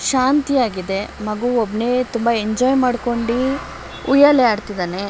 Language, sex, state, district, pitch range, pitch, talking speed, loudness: Kannada, female, Karnataka, Shimoga, 215-255 Hz, 240 Hz, 95 wpm, -18 LUFS